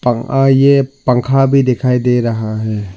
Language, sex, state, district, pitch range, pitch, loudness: Hindi, male, Arunachal Pradesh, Lower Dibang Valley, 115-135 Hz, 125 Hz, -13 LUFS